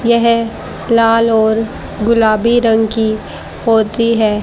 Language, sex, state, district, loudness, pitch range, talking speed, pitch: Hindi, female, Haryana, Charkhi Dadri, -13 LUFS, 220-230 Hz, 110 wpm, 225 Hz